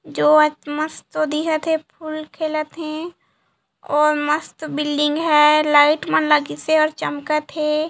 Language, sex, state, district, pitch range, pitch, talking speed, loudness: Chhattisgarhi, female, Chhattisgarh, Jashpur, 300-310 Hz, 305 Hz, 130 wpm, -19 LUFS